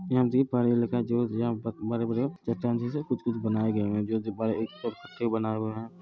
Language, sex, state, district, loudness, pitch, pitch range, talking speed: Maithili, male, Bihar, Araria, -29 LUFS, 115 Hz, 110-120 Hz, 120 wpm